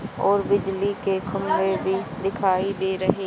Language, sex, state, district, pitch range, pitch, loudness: Hindi, female, Haryana, Charkhi Dadri, 190-200 Hz, 195 Hz, -23 LUFS